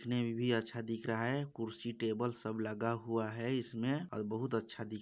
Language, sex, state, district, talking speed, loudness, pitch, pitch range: Hindi, male, Chhattisgarh, Balrampur, 225 wpm, -38 LUFS, 115 Hz, 115-120 Hz